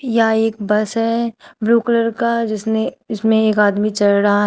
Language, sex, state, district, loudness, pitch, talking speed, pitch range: Hindi, female, Uttar Pradesh, Shamli, -17 LUFS, 220 Hz, 175 wpm, 210-230 Hz